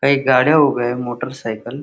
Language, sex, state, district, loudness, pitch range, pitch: Marathi, male, Maharashtra, Dhule, -17 LUFS, 120-140 Hz, 130 Hz